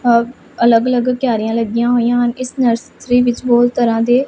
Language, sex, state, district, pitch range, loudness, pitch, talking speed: Punjabi, female, Punjab, Pathankot, 235-245 Hz, -15 LUFS, 240 Hz, 170 wpm